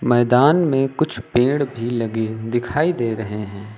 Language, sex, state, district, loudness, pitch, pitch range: Hindi, male, Uttar Pradesh, Lucknow, -19 LUFS, 120 Hz, 110-140 Hz